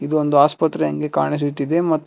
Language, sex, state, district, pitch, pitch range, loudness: Kannada, male, Karnataka, Bangalore, 150 Hz, 140-160 Hz, -19 LUFS